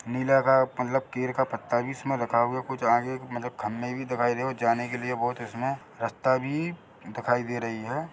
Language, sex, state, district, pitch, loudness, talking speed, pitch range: Hindi, male, Chhattisgarh, Bilaspur, 125 Hz, -28 LUFS, 220 wpm, 120-130 Hz